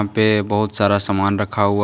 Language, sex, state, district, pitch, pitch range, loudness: Hindi, male, Jharkhand, Deoghar, 100 Hz, 100-105 Hz, -18 LUFS